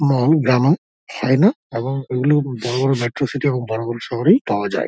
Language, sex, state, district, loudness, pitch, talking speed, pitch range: Bengali, male, West Bengal, Dakshin Dinajpur, -18 LUFS, 135 Hz, 170 wpm, 125-145 Hz